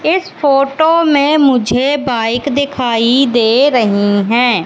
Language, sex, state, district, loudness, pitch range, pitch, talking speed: Hindi, female, Madhya Pradesh, Katni, -12 LUFS, 235-285 Hz, 265 Hz, 115 wpm